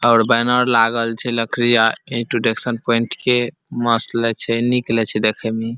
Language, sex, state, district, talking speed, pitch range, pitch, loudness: Maithili, male, Bihar, Saharsa, 185 wpm, 115-120 Hz, 115 Hz, -17 LUFS